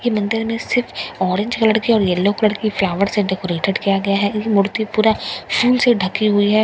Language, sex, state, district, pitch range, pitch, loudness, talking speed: Hindi, female, Bihar, Katihar, 195-220 Hz, 210 Hz, -17 LUFS, 215 wpm